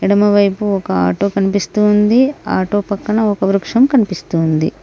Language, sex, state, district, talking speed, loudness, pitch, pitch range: Telugu, female, Telangana, Mahabubabad, 150 wpm, -14 LUFS, 200 Hz, 190-210 Hz